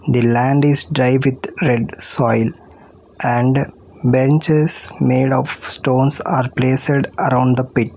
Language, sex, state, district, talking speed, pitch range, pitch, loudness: English, female, Telangana, Hyderabad, 130 wpm, 125-140 Hz, 130 Hz, -16 LUFS